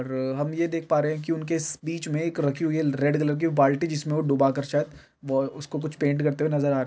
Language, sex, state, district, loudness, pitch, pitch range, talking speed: Hindi, male, Bihar, Supaul, -25 LUFS, 150 Hz, 140-155 Hz, 260 wpm